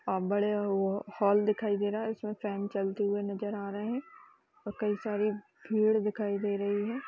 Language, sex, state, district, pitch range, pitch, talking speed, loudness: Hindi, female, Uttar Pradesh, Jalaun, 200-215 Hz, 205 Hz, 205 wpm, -31 LUFS